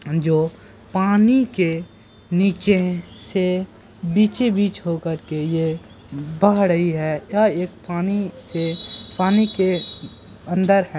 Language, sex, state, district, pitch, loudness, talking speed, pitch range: Hindi, female, Bihar, Purnia, 180 Hz, -20 LUFS, 115 wpm, 160-195 Hz